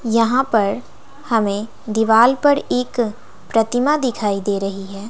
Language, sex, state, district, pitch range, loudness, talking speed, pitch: Hindi, female, Bihar, West Champaran, 205-250 Hz, -18 LUFS, 130 wpm, 225 Hz